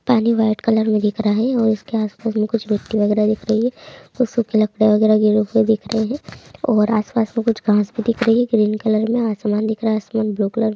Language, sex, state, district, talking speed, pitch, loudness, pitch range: Hindi, female, Uttar Pradesh, Jyotiba Phule Nagar, 245 wpm, 220 Hz, -18 LUFS, 215-230 Hz